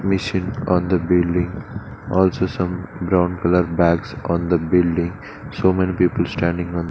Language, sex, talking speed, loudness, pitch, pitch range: English, male, 155 wpm, -20 LUFS, 90 Hz, 85-95 Hz